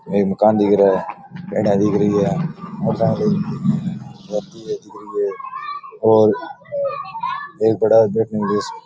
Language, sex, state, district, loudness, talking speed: Rajasthani, male, Rajasthan, Nagaur, -19 LUFS, 120 wpm